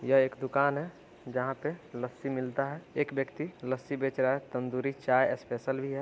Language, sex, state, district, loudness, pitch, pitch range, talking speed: Hindi, male, Uttar Pradesh, Varanasi, -32 LUFS, 135 Hz, 130-140 Hz, 200 wpm